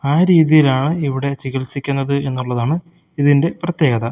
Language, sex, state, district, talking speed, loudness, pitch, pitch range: Malayalam, male, Kerala, Kozhikode, 100 wpm, -17 LUFS, 140 Hz, 135-160 Hz